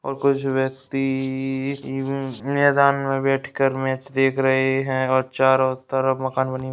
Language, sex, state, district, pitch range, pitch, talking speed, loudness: Hindi, male, Rajasthan, Nagaur, 130-135 Hz, 135 Hz, 150 wpm, -21 LUFS